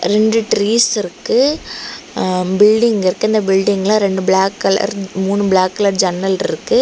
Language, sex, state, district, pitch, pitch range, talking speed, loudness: Tamil, female, Tamil Nadu, Kanyakumari, 200 Hz, 190-215 Hz, 130 wpm, -15 LUFS